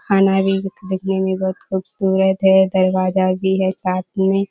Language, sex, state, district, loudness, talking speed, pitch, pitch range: Hindi, female, Bihar, Kishanganj, -18 LUFS, 160 wpm, 190 Hz, 190-195 Hz